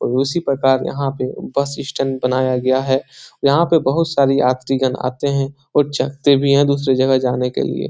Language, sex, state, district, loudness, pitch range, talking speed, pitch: Hindi, male, Bihar, Jahanabad, -17 LUFS, 130-140 Hz, 195 wpm, 135 Hz